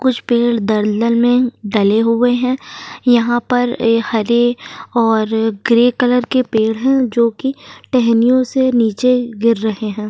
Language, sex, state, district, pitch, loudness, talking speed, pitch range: Hindi, female, Uttar Pradesh, Jyotiba Phule Nagar, 235 Hz, -15 LUFS, 150 wpm, 225-250 Hz